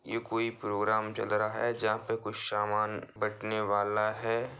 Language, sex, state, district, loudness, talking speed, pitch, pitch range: Hindi, male, Bihar, Bhagalpur, -32 LUFS, 170 wpm, 110 Hz, 105-115 Hz